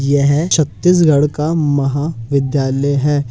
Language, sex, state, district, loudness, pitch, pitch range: Hindi, male, Uttar Pradesh, Hamirpur, -15 LUFS, 145 Hz, 140-155 Hz